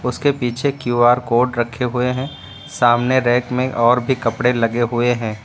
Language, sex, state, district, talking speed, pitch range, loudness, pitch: Hindi, male, Uttar Pradesh, Lucknow, 175 wpm, 120-125 Hz, -17 LUFS, 120 Hz